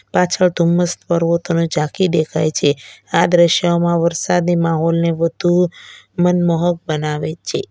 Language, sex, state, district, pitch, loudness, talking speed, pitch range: Gujarati, female, Gujarat, Valsad, 170 Hz, -16 LUFS, 110 wpm, 165-175 Hz